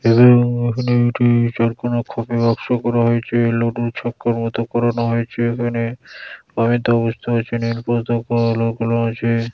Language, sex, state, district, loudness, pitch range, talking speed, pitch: Bengali, male, West Bengal, Dakshin Dinajpur, -18 LUFS, 115-120 Hz, 115 wpm, 120 Hz